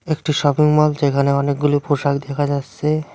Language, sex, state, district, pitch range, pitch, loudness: Bengali, male, West Bengal, Cooch Behar, 140-150 Hz, 145 Hz, -18 LUFS